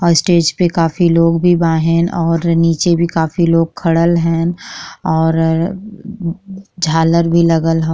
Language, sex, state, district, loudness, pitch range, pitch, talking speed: Bhojpuri, female, Uttar Pradesh, Gorakhpur, -14 LUFS, 165-175 Hz, 165 Hz, 150 wpm